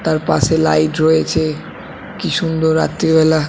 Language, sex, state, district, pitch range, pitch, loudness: Bengali, male, West Bengal, Kolkata, 155-160 Hz, 160 Hz, -15 LUFS